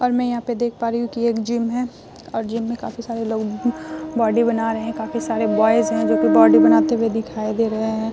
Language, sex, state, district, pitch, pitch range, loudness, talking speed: Hindi, female, Bihar, Vaishali, 230 Hz, 225-240 Hz, -19 LUFS, 265 wpm